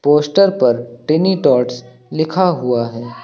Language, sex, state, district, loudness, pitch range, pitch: Hindi, male, Uttar Pradesh, Lucknow, -15 LUFS, 120-160 Hz, 125 Hz